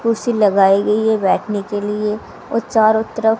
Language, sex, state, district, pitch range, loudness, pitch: Hindi, female, Haryana, Rohtak, 205-220 Hz, -16 LUFS, 215 Hz